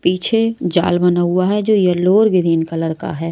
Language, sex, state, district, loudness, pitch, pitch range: Hindi, female, Maharashtra, Mumbai Suburban, -15 LUFS, 180 Hz, 170-200 Hz